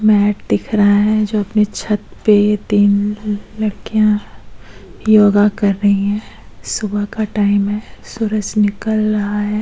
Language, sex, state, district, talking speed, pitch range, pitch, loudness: Hindi, female, Goa, North and South Goa, 145 wpm, 205-215 Hz, 210 Hz, -16 LUFS